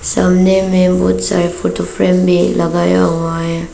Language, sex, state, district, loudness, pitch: Hindi, female, Arunachal Pradesh, Papum Pare, -13 LUFS, 165 Hz